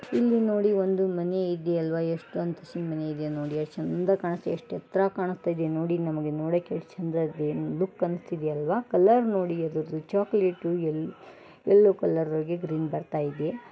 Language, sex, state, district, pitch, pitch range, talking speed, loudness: Kannada, female, Karnataka, Gulbarga, 170 Hz, 155-190 Hz, 150 wpm, -27 LUFS